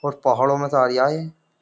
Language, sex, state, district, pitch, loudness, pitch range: Hindi, male, Uttar Pradesh, Jyotiba Phule Nagar, 140 Hz, -20 LUFS, 135-145 Hz